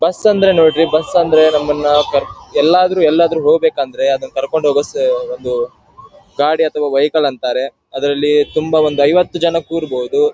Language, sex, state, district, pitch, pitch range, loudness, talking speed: Kannada, male, Karnataka, Dharwad, 160 Hz, 150-195 Hz, -14 LUFS, 140 wpm